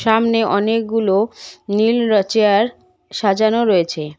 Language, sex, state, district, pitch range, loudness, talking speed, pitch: Bengali, female, West Bengal, Cooch Behar, 200-225 Hz, -16 LUFS, 100 wpm, 220 Hz